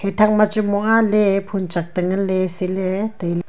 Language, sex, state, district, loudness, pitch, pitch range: Wancho, female, Arunachal Pradesh, Longding, -19 LUFS, 195 Hz, 185-210 Hz